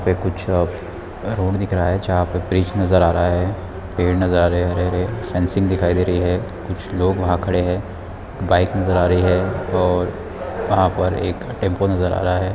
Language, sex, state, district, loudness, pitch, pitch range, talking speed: Hindi, male, Chhattisgarh, Raigarh, -19 LUFS, 90 Hz, 90-95 Hz, 210 wpm